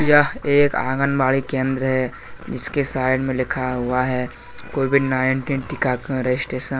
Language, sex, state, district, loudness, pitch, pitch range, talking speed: Hindi, male, Jharkhand, Deoghar, -20 LUFS, 130 Hz, 130-140 Hz, 140 wpm